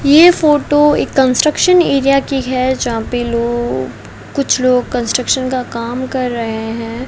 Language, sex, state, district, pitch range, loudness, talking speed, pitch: Hindi, female, Rajasthan, Bikaner, 235-275 Hz, -14 LUFS, 155 wpm, 255 Hz